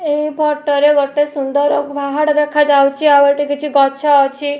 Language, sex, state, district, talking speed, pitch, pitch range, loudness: Odia, female, Odisha, Nuapada, 155 wpm, 290 Hz, 280-295 Hz, -14 LUFS